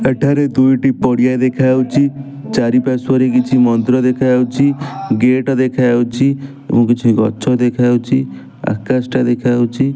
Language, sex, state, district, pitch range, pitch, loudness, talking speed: Odia, male, Odisha, Nuapada, 120-135 Hz, 130 Hz, -14 LUFS, 120 wpm